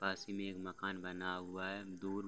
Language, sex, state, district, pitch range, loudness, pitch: Hindi, male, Bihar, Gopalganj, 90-100 Hz, -43 LUFS, 95 Hz